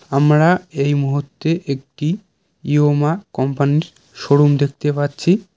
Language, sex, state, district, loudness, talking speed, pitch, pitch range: Bengali, male, West Bengal, Cooch Behar, -17 LUFS, 95 wpm, 145 Hz, 140-165 Hz